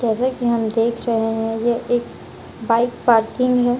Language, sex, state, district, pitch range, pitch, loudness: Hindi, female, Bihar, Kaimur, 225-245 Hz, 235 Hz, -19 LUFS